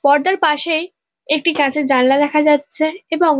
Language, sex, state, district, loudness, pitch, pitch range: Bengali, female, West Bengal, North 24 Parganas, -16 LUFS, 300 Hz, 285-320 Hz